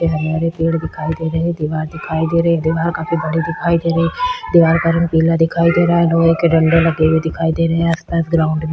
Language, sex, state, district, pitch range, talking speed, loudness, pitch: Hindi, female, Chhattisgarh, Sukma, 160-170 Hz, 260 wpm, -16 LUFS, 165 Hz